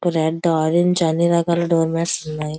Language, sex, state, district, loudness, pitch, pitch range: Telugu, female, Andhra Pradesh, Visakhapatnam, -18 LUFS, 165 Hz, 160-170 Hz